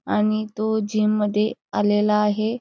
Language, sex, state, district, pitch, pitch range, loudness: Marathi, female, Karnataka, Belgaum, 215 Hz, 210-215 Hz, -21 LUFS